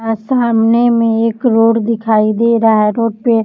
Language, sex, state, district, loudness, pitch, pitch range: Hindi, female, Maharashtra, Nagpur, -12 LUFS, 230 Hz, 225-230 Hz